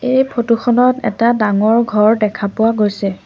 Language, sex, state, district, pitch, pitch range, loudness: Assamese, female, Assam, Sonitpur, 225 Hz, 210-240 Hz, -14 LUFS